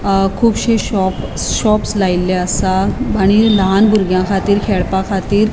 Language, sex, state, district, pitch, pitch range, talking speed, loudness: Konkani, female, Goa, North and South Goa, 195 Hz, 190-210 Hz, 130 wpm, -14 LUFS